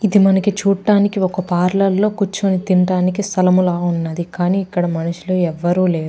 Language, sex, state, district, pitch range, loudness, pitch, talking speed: Telugu, female, Andhra Pradesh, Chittoor, 175-195 Hz, -17 LUFS, 185 Hz, 155 wpm